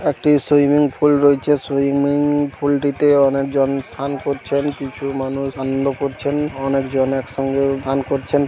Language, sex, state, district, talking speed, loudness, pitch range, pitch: Bengali, male, West Bengal, Paschim Medinipur, 155 wpm, -18 LUFS, 135-145 Hz, 140 Hz